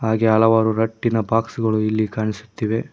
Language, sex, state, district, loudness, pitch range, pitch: Kannada, male, Karnataka, Koppal, -19 LUFS, 110-115 Hz, 110 Hz